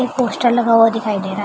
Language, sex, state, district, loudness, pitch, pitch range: Hindi, female, Bihar, Begusarai, -15 LUFS, 230 Hz, 210-240 Hz